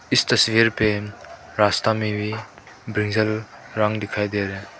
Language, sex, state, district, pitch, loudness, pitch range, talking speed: Hindi, male, Manipur, Imphal West, 105 Hz, -21 LUFS, 105-110 Hz, 150 wpm